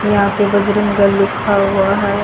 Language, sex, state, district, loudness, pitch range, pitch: Hindi, female, Haryana, Charkhi Dadri, -14 LUFS, 200-205 Hz, 205 Hz